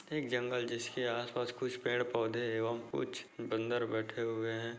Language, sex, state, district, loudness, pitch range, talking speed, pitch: Hindi, male, Bihar, Bhagalpur, -37 LUFS, 115-125 Hz, 150 wpm, 120 Hz